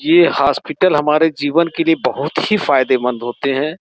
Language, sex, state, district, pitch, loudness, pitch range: Hindi, male, Uttar Pradesh, Gorakhpur, 150 Hz, -15 LUFS, 135-170 Hz